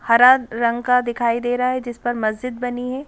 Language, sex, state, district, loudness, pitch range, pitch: Hindi, female, Madhya Pradesh, Bhopal, -19 LUFS, 235-250 Hz, 245 Hz